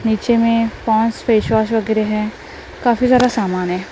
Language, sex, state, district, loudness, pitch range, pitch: Hindi, female, Maharashtra, Gondia, -16 LUFS, 215-230 Hz, 220 Hz